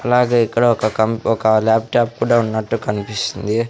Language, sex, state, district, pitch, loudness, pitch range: Telugu, male, Andhra Pradesh, Sri Satya Sai, 115 Hz, -17 LUFS, 110-120 Hz